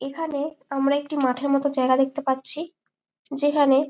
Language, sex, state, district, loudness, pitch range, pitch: Bengali, female, West Bengal, Malda, -23 LUFS, 270-290 Hz, 280 Hz